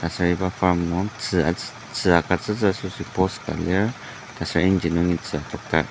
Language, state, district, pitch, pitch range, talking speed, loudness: Ao, Nagaland, Dimapur, 90 Hz, 85-95 Hz, 150 wpm, -23 LUFS